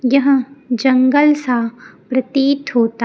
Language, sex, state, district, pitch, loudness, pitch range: Hindi, male, Chhattisgarh, Raipur, 260 Hz, -15 LUFS, 245-275 Hz